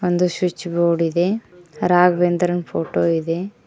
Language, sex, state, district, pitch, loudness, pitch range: Kannada, male, Karnataka, Koppal, 175 Hz, -19 LUFS, 170-180 Hz